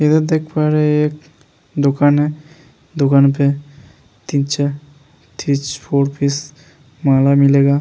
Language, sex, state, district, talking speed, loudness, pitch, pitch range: Hindi, male, Uttar Pradesh, Hamirpur, 90 wpm, -16 LUFS, 145 Hz, 140-150 Hz